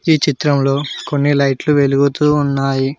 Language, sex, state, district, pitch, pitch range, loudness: Telugu, male, Telangana, Mahabubabad, 140 Hz, 135-150 Hz, -15 LUFS